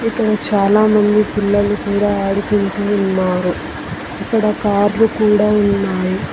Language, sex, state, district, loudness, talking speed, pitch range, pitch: Telugu, female, Telangana, Hyderabad, -15 LUFS, 105 wpm, 200-210 Hz, 205 Hz